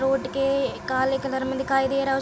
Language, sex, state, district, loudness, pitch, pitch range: Hindi, female, Uttar Pradesh, Ghazipur, -24 LUFS, 270 Hz, 265-270 Hz